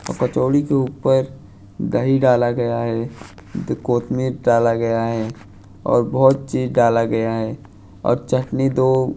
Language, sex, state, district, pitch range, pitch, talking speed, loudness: Hindi, male, Maharashtra, Washim, 115-130 Hz, 120 Hz, 130 wpm, -19 LUFS